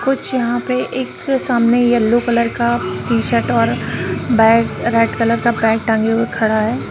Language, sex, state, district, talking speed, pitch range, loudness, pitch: Hindi, female, Bihar, Sitamarhi, 165 wpm, 220-240 Hz, -16 LUFS, 230 Hz